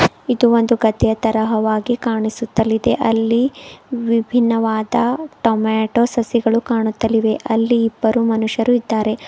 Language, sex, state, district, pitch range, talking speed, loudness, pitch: Kannada, female, Karnataka, Bidar, 220-240 Hz, 105 wpm, -17 LUFS, 230 Hz